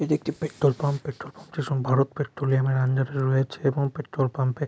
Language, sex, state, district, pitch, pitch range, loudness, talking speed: Bengali, male, West Bengal, Kolkata, 135 Hz, 135-145 Hz, -25 LUFS, 220 wpm